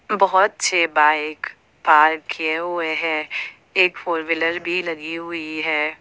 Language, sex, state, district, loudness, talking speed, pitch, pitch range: Hindi, female, Jharkhand, Ranchi, -20 LUFS, 140 wpm, 165 Hz, 155-170 Hz